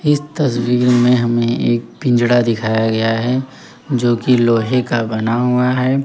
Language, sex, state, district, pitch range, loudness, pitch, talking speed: Hindi, male, Uttar Pradesh, Lalitpur, 115-125 Hz, -15 LUFS, 120 Hz, 160 wpm